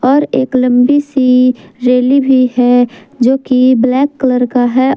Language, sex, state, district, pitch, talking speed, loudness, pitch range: Hindi, female, Jharkhand, Ranchi, 255 Hz, 155 wpm, -11 LUFS, 250-265 Hz